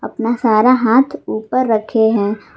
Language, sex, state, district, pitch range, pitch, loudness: Hindi, female, Jharkhand, Garhwa, 220-255 Hz, 225 Hz, -15 LUFS